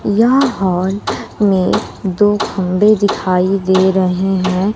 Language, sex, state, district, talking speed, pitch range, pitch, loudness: Hindi, female, Bihar, West Champaran, 115 wpm, 185-205 Hz, 190 Hz, -14 LUFS